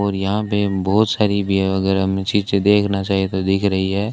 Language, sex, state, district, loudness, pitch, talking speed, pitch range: Hindi, male, Rajasthan, Bikaner, -18 LUFS, 100 Hz, 160 wpm, 95-105 Hz